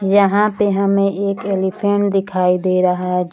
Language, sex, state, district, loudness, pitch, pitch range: Hindi, female, Bihar, Jahanabad, -16 LUFS, 195 Hz, 185-200 Hz